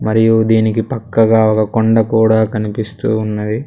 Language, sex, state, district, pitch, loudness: Telugu, male, Andhra Pradesh, Sri Satya Sai, 110 Hz, -14 LUFS